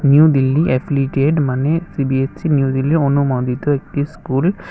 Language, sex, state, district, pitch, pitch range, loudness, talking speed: Bengali, male, Tripura, West Tripura, 140 Hz, 135-155 Hz, -16 LUFS, 140 wpm